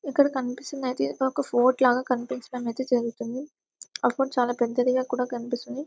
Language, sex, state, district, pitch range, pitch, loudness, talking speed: Telugu, female, Telangana, Karimnagar, 245-265 Hz, 250 Hz, -26 LUFS, 165 wpm